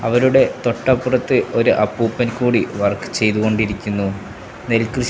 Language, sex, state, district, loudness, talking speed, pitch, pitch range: Malayalam, male, Kerala, Kasaragod, -18 LUFS, 120 wpm, 115 Hz, 105-120 Hz